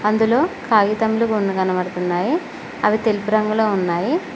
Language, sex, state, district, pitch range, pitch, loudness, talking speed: Telugu, female, Telangana, Mahabubabad, 195-225 Hz, 215 Hz, -19 LUFS, 110 wpm